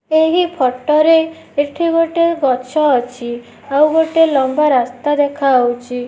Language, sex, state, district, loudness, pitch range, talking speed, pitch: Odia, female, Odisha, Nuapada, -14 LUFS, 255-320 Hz, 120 wpm, 290 Hz